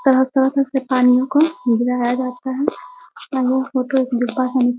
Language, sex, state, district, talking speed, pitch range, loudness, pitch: Hindi, female, Bihar, Muzaffarpur, 100 wpm, 250-265 Hz, -18 LUFS, 260 Hz